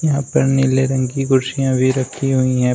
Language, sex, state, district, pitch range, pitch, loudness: Hindi, male, Uttar Pradesh, Shamli, 130-135 Hz, 130 Hz, -17 LUFS